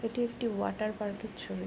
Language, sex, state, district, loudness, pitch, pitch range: Bengali, female, West Bengal, Jhargram, -35 LUFS, 215 Hz, 205-230 Hz